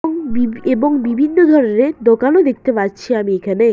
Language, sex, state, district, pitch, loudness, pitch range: Bengali, female, West Bengal, Purulia, 250 Hz, -14 LUFS, 230-295 Hz